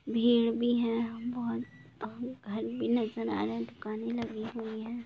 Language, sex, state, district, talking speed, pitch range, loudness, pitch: Hindi, female, Jharkhand, Jamtara, 200 wpm, 215-235 Hz, -32 LUFS, 230 Hz